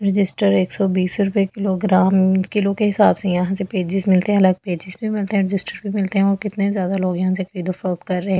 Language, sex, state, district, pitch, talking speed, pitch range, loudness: Hindi, female, Delhi, New Delhi, 195 Hz, 235 wpm, 185-200 Hz, -19 LUFS